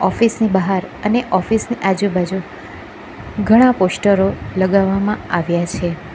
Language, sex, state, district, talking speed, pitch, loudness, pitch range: Gujarati, female, Gujarat, Valsad, 115 wpm, 195 Hz, -16 LUFS, 185-215 Hz